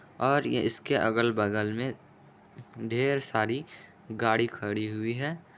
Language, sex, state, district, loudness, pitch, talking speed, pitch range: Magahi, male, Bihar, Jahanabad, -28 LUFS, 115 Hz, 120 wpm, 110-130 Hz